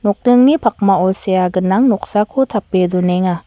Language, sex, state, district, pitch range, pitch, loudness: Garo, female, Meghalaya, West Garo Hills, 185-230 Hz, 200 Hz, -13 LUFS